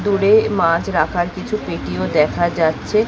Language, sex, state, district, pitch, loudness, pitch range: Bengali, female, West Bengal, Kolkata, 175 Hz, -17 LUFS, 160-210 Hz